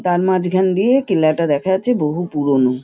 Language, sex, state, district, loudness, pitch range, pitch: Bengali, female, West Bengal, North 24 Parganas, -16 LUFS, 150-190 Hz, 175 Hz